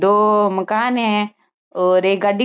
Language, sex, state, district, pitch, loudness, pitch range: Marwari, female, Rajasthan, Churu, 210 Hz, -17 LUFS, 195-215 Hz